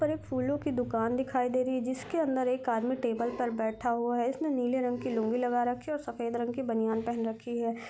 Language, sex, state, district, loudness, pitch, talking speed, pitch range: Hindi, female, Chhattisgarh, Rajnandgaon, -31 LUFS, 245 Hz, 260 wpm, 235-260 Hz